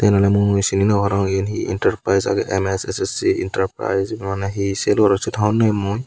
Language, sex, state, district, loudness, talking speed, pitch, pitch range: Chakma, male, Tripura, Unakoti, -19 LUFS, 195 wpm, 100 Hz, 95-105 Hz